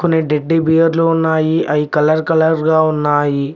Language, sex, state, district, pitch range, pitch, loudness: Telugu, male, Telangana, Mahabubabad, 150-160 Hz, 160 Hz, -14 LUFS